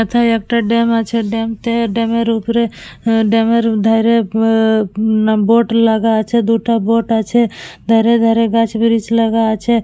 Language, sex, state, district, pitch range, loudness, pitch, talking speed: Bengali, female, West Bengal, Purulia, 225-230 Hz, -14 LUFS, 225 Hz, 160 wpm